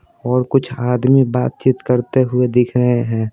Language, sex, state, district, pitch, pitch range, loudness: Hindi, male, Bihar, Patna, 125 Hz, 125-130 Hz, -16 LUFS